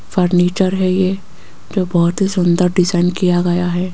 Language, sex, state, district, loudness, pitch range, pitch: Hindi, female, Rajasthan, Jaipur, -15 LUFS, 175-185 Hz, 180 Hz